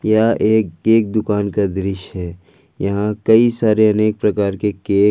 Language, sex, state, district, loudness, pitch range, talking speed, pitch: Hindi, male, Jharkhand, Ranchi, -16 LUFS, 100-110 Hz, 165 wpm, 105 Hz